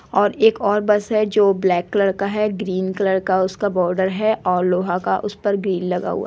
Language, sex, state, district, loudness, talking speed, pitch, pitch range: Hindi, female, Jharkhand, Sahebganj, -19 LUFS, 240 wpm, 200 Hz, 185-210 Hz